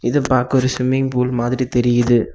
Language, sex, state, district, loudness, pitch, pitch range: Tamil, male, Tamil Nadu, Kanyakumari, -17 LUFS, 125 Hz, 120-130 Hz